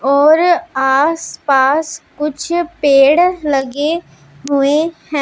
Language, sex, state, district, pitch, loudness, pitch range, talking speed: Hindi, female, Punjab, Pathankot, 300 Hz, -14 LUFS, 275-330 Hz, 80 wpm